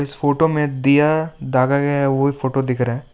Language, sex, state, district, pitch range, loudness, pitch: Hindi, male, West Bengal, Alipurduar, 135-145 Hz, -17 LUFS, 140 Hz